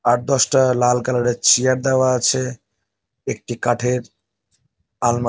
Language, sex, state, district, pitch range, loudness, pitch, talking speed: Bengali, male, West Bengal, North 24 Parganas, 115-130 Hz, -18 LUFS, 125 Hz, 135 wpm